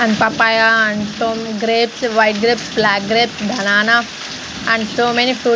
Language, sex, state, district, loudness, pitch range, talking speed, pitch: English, female, Punjab, Fazilka, -15 LUFS, 220-235 Hz, 150 wpm, 225 Hz